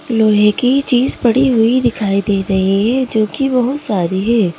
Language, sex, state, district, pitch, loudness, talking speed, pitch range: Hindi, female, Madhya Pradesh, Bhopal, 225 Hz, -14 LUFS, 185 wpm, 200-255 Hz